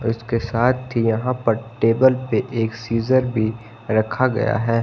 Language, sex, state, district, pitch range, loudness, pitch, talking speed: Hindi, male, Himachal Pradesh, Shimla, 115-125 Hz, -20 LUFS, 115 Hz, 160 wpm